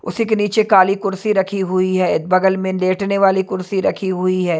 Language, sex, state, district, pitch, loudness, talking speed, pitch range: Hindi, male, Himachal Pradesh, Shimla, 190 Hz, -17 LUFS, 210 wpm, 185-195 Hz